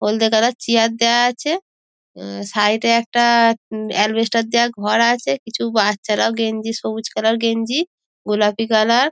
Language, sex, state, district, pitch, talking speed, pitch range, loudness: Bengali, female, West Bengal, Dakshin Dinajpur, 225 Hz, 140 wpm, 215-235 Hz, -17 LUFS